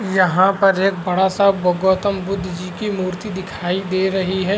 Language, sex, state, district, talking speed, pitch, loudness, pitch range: Hindi, male, Bihar, Araria, 185 wpm, 190 Hz, -18 LUFS, 185-195 Hz